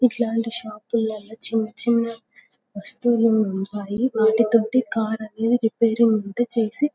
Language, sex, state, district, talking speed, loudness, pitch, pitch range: Telugu, female, Telangana, Karimnagar, 105 wpm, -22 LUFS, 225 Hz, 220-235 Hz